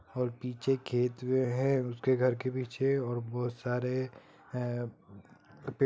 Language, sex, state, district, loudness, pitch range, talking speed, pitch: Hindi, male, Bihar, Gopalganj, -32 LUFS, 120-130 Hz, 115 wpm, 125 Hz